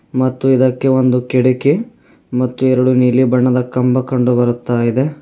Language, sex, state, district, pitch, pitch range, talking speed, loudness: Kannada, male, Karnataka, Bidar, 130 Hz, 125-130 Hz, 140 wpm, -14 LUFS